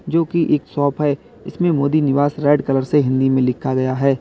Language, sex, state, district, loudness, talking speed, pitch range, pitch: Hindi, male, Uttar Pradesh, Lalitpur, -18 LUFS, 230 wpm, 135-155 Hz, 145 Hz